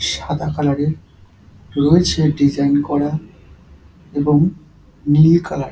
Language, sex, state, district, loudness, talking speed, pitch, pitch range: Bengali, male, West Bengal, Dakshin Dinajpur, -16 LUFS, 105 wpm, 145 Hz, 100-150 Hz